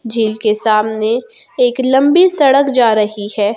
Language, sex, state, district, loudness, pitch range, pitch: Hindi, female, Jharkhand, Garhwa, -13 LUFS, 215-270 Hz, 230 Hz